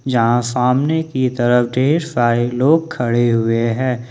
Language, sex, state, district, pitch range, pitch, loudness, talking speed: Hindi, male, Jharkhand, Ranchi, 120-130 Hz, 125 Hz, -16 LUFS, 145 wpm